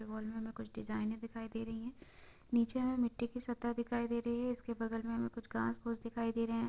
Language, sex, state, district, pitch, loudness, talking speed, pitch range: Hindi, female, Chhattisgarh, Sukma, 230 Hz, -39 LUFS, 260 wpm, 225-235 Hz